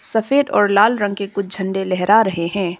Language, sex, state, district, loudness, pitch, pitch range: Hindi, female, Arunachal Pradesh, Papum Pare, -17 LUFS, 200 Hz, 190-215 Hz